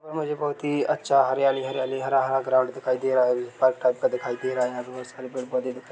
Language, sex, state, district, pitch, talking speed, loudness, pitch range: Hindi, male, Chhattisgarh, Bilaspur, 130 Hz, 245 wpm, -25 LUFS, 125-135 Hz